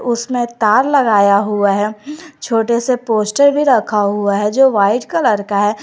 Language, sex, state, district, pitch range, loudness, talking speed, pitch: Hindi, female, Jharkhand, Garhwa, 205-255 Hz, -14 LUFS, 175 wpm, 220 Hz